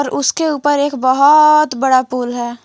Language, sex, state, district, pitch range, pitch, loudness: Hindi, female, Jharkhand, Garhwa, 250-295 Hz, 280 Hz, -13 LUFS